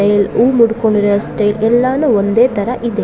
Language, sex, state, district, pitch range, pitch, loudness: Kannada, female, Karnataka, Shimoga, 205-240 Hz, 220 Hz, -13 LUFS